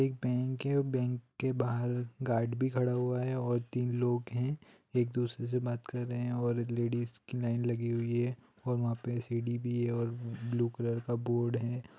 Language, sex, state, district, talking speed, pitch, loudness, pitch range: Hindi, male, West Bengal, Purulia, 200 wpm, 120 Hz, -34 LUFS, 120-125 Hz